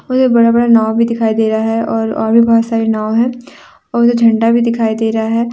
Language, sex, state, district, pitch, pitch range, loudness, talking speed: Hindi, female, Jharkhand, Deoghar, 230 Hz, 225-235 Hz, -12 LUFS, 260 wpm